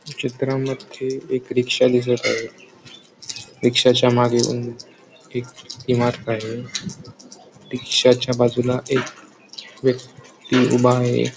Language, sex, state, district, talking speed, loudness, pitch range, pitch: Marathi, male, Maharashtra, Sindhudurg, 85 wpm, -20 LUFS, 120-130 Hz, 125 Hz